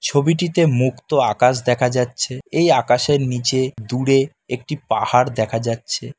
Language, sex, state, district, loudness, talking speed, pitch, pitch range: Bengali, male, West Bengal, Kolkata, -18 LUFS, 135 wpm, 125 Hz, 125-140 Hz